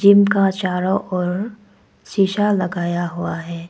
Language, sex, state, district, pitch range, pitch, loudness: Hindi, female, Arunachal Pradesh, Papum Pare, 175-200 Hz, 185 Hz, -19 LUFS